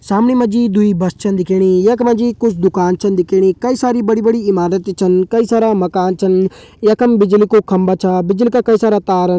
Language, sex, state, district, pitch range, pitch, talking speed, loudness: Hindi, male, Uttarakhand, Uttarkashi, 185-230 Hz, 205 Hz, 215 wpm, -13 LUFS